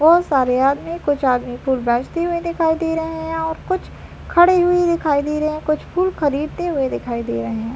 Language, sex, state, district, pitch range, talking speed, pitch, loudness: Hindi, male, Bihar, Madhepura, 265-340 Hz, 225 wpm, 305 Hz, -19 LUFS